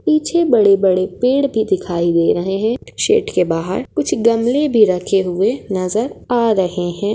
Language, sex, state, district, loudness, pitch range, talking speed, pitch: Hindi, female, Maharashtra, Sindhudurg, -16 LUFS, 185-245 Hz, 170 wpm, 205 Hz